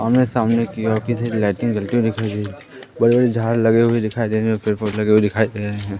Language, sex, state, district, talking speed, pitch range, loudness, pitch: Hindi, male, Madhya Pradesh, Katni, 270 wpm, 105-115 Hz, -19 LUFS, 110 Hz